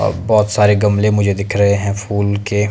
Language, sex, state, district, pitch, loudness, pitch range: Hindi, male, Himachal Pradesh, Shimla, 100 Hz, -15 LUFS, 100-105 Hz